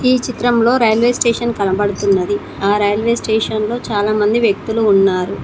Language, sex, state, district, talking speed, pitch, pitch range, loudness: Telugu, female, Telangana, Mahabubabad, 130 wpm, 220 Hz, 205-235 Hz, -15 LUFS